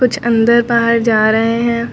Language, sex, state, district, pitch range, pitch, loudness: Hindi, female, Uttar Pradesh, Lucknow, 225-235 Hz, 235 Hz, -13 LUFS